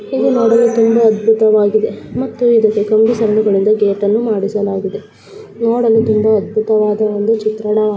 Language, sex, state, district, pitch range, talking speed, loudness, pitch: Kannada, female, Karnataka, Bellary, 210-225 Hz, 105 wpm, -13 LUFS, 215 Hz